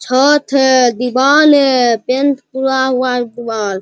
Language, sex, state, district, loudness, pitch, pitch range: Hindi, male, Bihar, Araria, -12 LUFS, 255 Hz, 245-270 Hz